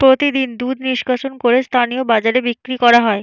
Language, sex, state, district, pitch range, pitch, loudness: Bengali, female, West Bengal, Jalpaiguri, 240-260 Hz, 250 Hz, -16 LUFS